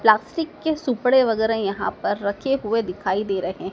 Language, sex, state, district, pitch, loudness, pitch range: Hindi, female, Madhya Pradesh, Dhar, 220 Hz, -22 LUFS, 200-260 Hz